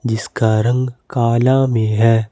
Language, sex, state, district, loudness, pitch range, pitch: Hindi, male, Jharkhand, Ranchi, -16 LUFS, 110-125 Hz, 115 Hz